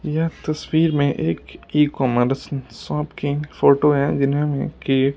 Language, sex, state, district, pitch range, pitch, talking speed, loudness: Hindi, male, Punjab, Kapurthala, 135-150 Hz, 145 Hz, 140 wpm, -20 LUFS